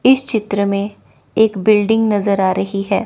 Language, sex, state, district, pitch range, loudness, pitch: Hindi, female, Chandigarh, Chandigarh, 200-220 Hz, -16 LUFS, 205 Hz